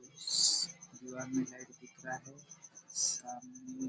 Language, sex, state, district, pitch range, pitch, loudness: Hindi, male, Chhattisgarh, Bastar, 130-175 Hz, 160 Hz, -34 LUFS